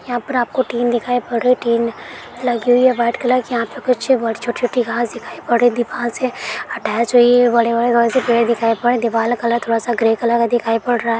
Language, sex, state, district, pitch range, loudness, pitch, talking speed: Hindi, female, West Bengal, Malda, 235-245 Hz, -17 LUFS, 240 Hz, 260 wpm